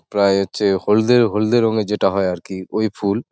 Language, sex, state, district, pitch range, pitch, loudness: Bengali, male, West Bengal, Jalpaiguri, 100-110 Hz, 105 Hz, -18 LUFS